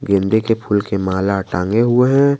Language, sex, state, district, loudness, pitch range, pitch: Hindi, male, Jharkhand, Garhwa, -16 LUFS, 100-120 Hz, 105 Hz